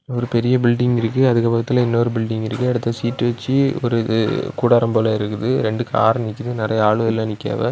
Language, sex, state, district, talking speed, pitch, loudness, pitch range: Tamil, male, Tamil Nadu, Kanyakumari, 180 wpm, 115 Hz, -18 LUFS, 110-120 Hz